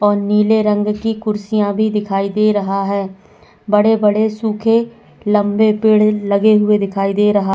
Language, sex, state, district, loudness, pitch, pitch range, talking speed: Hindi, female, Goa, North and South Goa, -15 LUFS, 210 Hz, 205-215 Hz, 150 wpm